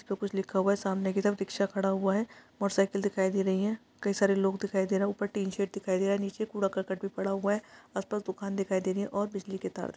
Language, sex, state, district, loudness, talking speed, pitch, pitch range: Hindi, female, Bihar, Araria, -31 LUFS, 300 wpm, 195 Hz, 195-200 Hz